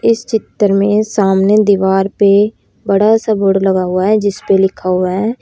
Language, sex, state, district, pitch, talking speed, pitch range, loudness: Hindi, female, Haryana, Rohtak, 200 Hz, 190 wpm, 190-215 Hz, -13 LUFS